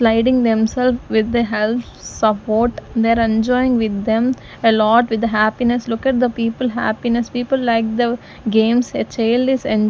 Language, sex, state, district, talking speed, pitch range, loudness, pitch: English, female, Punjab, Fazilka, 165 wpm, 220-245 Hz, -17 LUFS, 230 Hz